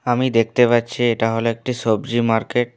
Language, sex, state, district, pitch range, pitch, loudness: Bengali, male, West Bengal, Alipurduar, 115-120 Hz, 120 Hz, -18 LUFS